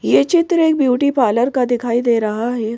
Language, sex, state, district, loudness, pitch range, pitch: Hindi, female, Madhya Pradesh, Bhopal, -16 LUFS, 235-280 Hz, 245 Hz